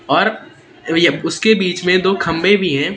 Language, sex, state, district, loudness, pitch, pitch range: Hindi, male, Madhya Pradesh, Katni, -15 LUFS, 180 Hz, 165-190 Hz